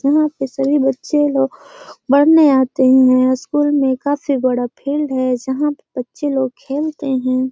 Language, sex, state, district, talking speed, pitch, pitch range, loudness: Hindi, female, Bihar, Gaya, 160 wpm, 270 Hz, 260-290 Hz, -16 LUFS